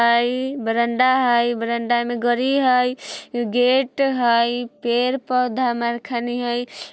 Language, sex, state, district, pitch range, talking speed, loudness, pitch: Bajjika, female, Bihar, Vaishali, 235-255 Hz, 115 wpm, -20 LUFS, 245 Hz